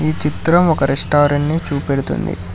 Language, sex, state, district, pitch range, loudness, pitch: Telugu, male, Telangana, Hyderabad, 140-155 Hz, -16 LUFS, 145 Hz